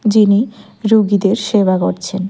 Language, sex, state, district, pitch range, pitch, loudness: Bengali, female, Tripura, West Tripura, 195-215 Hz, 210 Hz, -14 LUFS